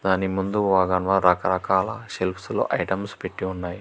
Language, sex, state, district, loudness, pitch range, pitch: Telugu, male, Telangana, Hyderabad, -23 LUFS, 90-95 Hz, 95 Hz